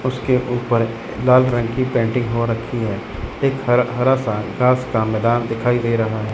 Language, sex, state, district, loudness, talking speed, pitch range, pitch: Hindi, male, Chandigarh, Chandigarh, -19 LUFS, 180 wpm, 115-125 Hz, 120 Hz